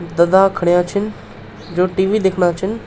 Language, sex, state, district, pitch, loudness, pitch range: Garhwali, male, Uttarakhand, Tehri Garhwal, 180 Hz, -16 LUFS, 170-195 Hz